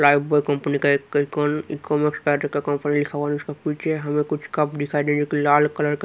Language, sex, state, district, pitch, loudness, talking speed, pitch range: Hindi, male, Haryana, Rohtak, 145 Hz, -22 LUFS, 140 wpm, 145-150 Hz